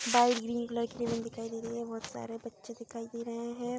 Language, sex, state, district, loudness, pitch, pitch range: Hindi, female, Bihar, Saharsa, -35 LUFS, 235 Hz, 230-235 Hz